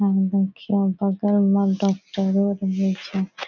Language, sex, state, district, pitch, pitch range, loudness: Maithili, female, Bihar, Saharsa, 195 Hz, 195-200 Hz, -22 LUFS